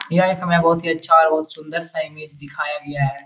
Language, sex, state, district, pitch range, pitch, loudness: Hindi, male, Bihar, Jahanabad, 150-170 Hz, 160 Hz, -19 LUFS